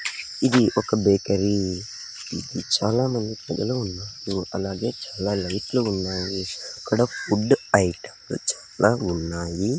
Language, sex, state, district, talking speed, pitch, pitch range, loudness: Telugu, male, Andhra Pradesh, Sri Satya Sai, 110 wpm, 100 Hz, 95-115 Hz, -24 LUFS